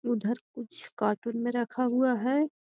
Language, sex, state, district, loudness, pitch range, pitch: Magahi, female, Bihar, Gaya, -30 LUFS, 235-250 Hz, 240 Hz